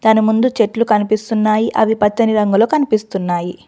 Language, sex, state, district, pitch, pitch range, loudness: Telugu, female, Telangana, Mahabubabad, 220 Hz, 210-225 Hz, -15 LUFS